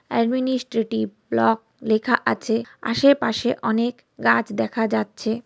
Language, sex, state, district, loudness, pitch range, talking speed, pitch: Bengali, female, West Bengal, North 24 Parganas, -22 LUFS, 205-240 Hz, 110 wpm, 225 Hz